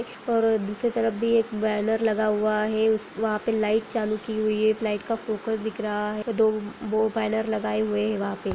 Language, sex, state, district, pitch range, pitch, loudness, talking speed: Hindi, female, Chhattisgarh, Kabirdham, 215-225 Hz, 220 Hz, -25 LUFS, 225 wpm